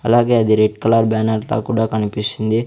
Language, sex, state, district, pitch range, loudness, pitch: Telugu, male, Andhra Pradesh, Sri Satya Sai, 110-115 Hz, -16 LUFS, 110 Hz